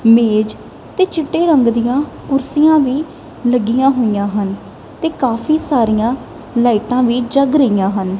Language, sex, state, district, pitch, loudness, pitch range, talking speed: Punjabi, female, Punjab, Kapurthala, 245 Hz, -15 LUFS, 225-285 Hz, 130 wpm